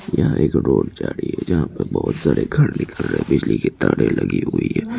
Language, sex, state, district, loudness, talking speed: Hindi, male, Bihar, Purnia, -19 LUFS, 240 wpm